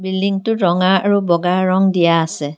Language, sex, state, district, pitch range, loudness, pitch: Assamese, female, Assam, Kamrup Metropolitan, 170-195 Hz, -15 LUFS, 185 Hz